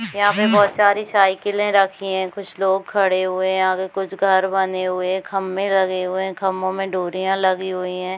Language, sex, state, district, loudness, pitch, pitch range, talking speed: Hindi, female, Chhattisgarh, Bilaspur, -19 LUFS, 190 Hz, 185-195 Hz, 205 wpm